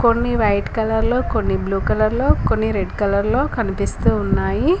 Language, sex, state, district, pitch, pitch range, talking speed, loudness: Telugu, female, Telangana, Komaram Bheem, 220 Hz, 205-240 Hz, 135 wpm, -19 LUFS